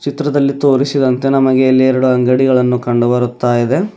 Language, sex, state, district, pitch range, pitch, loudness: Kannada, male, Karnataka, Bidar, 125-140 Hz, 130 Hz, -13 LUFS